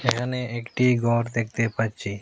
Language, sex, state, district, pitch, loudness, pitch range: Bengali, male, Assam, Hailakandi, 115 Hz, -24 LUFS, 115-120 Hz